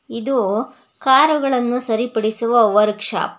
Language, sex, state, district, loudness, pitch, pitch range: Kannada, female, Karnataka, Bangalore, -17 LUFS, 235 Hz, 220-255 Hz